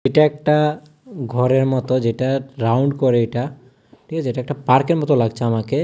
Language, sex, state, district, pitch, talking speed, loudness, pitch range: Bengali, male, Tripura, West Tripura, 130 Hz, 165 wpm, -19 LUFS, 125-150 Hz